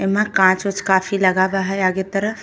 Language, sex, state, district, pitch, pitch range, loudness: Bhojpuri, female, Uttar Pradesh, Gorakhpur, 195 Hz, 185-200 Hz, -18 LUFS